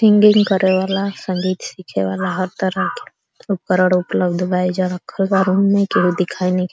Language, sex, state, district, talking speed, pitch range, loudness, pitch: Bhojpuri, female, Uttar Pradesh, Deoria, 185 wpm, 180-195 Hz, -17 LUFS, 185 Hz